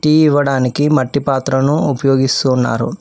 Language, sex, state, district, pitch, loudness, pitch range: Telugu, male, Telangana, Hyderabad, 135 Hz, -14 LUFS, 130-145 Hz